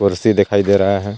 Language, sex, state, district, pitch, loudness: Hindi, male, Jharkhand, Garhwa, 100 Hz, -15 LUFS